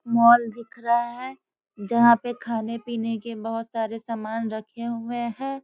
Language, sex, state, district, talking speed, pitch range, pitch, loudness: Hindi, female, Bihar, Sitamarhi, 160 wpm, 225-240 Hz, 235 Hz, -24 LUFS